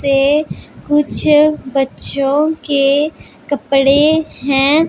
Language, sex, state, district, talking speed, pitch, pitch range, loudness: Hindi, female, Punjab, Pathankot, 75 wpm, 285 Hz, 275-300 Hz, -14 LUFS